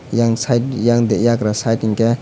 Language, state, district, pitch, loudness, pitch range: Kokborok, Tripura, West Tripura, 115 Hz, -16 LUFS, 115-120 Hz